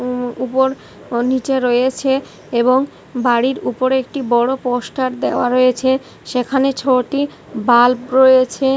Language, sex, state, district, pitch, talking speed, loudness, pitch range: Bengali, female, West Bengal, Kolkata, 255 Hz, 115 wpm, -16 LUFS, 245-265 Hz